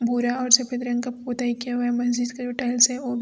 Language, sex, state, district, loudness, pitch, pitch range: Hindi, female, Chhattisgarh, Raipur, -22 LUFS, 245 Hz, 245-250 Hz